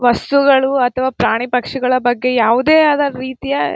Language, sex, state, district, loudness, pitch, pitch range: Kannada, female, Karnataka, Gulbarga, -14 LUFS, 255 Hz, 250-275 Hz